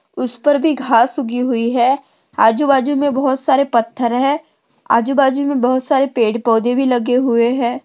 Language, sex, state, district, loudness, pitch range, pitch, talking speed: Hindi, female, Maharashtra, Sindhudurg, -15 LUFS, 240-275 Hz, 260 Hz, 155 wpm